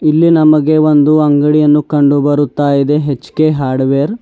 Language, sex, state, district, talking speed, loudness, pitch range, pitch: Kannada, male, Karnataka, Bidar, 140 wpm, -11 LUFS, 145-155 Hz, 150 Hz